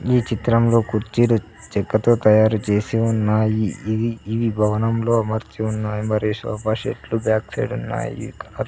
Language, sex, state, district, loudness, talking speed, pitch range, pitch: Telugu, male, Andhra Pradesh, Sri Satya Sai, -20 LUFS, 125 wpm, 110-115 Hz, 110 Hz